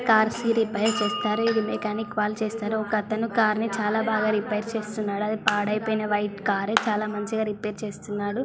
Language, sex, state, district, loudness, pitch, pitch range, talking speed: Telugu, female, Andhra Pradesh, Krishna, -25 LUFS, 215 Hz, 210-220 Hz, 165 wpm